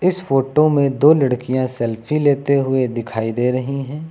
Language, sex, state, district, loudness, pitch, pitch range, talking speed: Hindi, male, Uttar Pradesh, Lucknow, -18 LUFS, 135 Hz, 125-145 Hz, 175 wpm